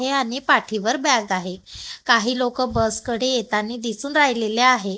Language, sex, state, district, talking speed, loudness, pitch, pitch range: Marathi, female, Maharashtra, Gondia, 155 wpm, -20 LUFS, 245 Hz, 220-255 Hz